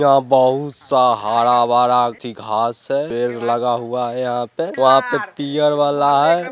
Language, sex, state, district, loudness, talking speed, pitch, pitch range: Hindi, male, Bihar, Vaishali, -17 LUFS, 175 wpm, 125 Hz, 120-140 Hz